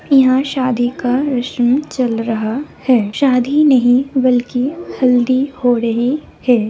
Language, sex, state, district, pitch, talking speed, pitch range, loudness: Hindi, female, Bihar, Lakhisarai, 255 Hz, 125 wpm, 245-270 Hz, -15 LUFS